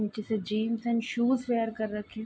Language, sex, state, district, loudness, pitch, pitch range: Hindi, female, Bihar, Darbhanga, -30 LUFS, 220 Hz, 215-235 Hz